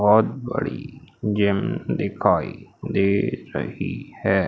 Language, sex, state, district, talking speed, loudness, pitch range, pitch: Hindi, male, Madhya Pradesh, Umaria, 95 wpm, -23 LUFS, 100-105 Hz, 100 Hz